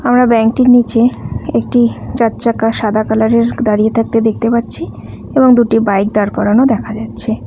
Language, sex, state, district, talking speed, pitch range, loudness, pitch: Bengali, female, West Bengal, Cooch Behar, 150 wpm, 220-240 Hz, -12 LUFS, 230 Hz